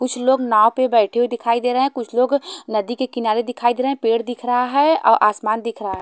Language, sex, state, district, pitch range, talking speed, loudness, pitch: Hindi, female, Haryana, Charkhi Dadri, 225-255 Hz, 250 wpm, -18 LUFS, 240 Hz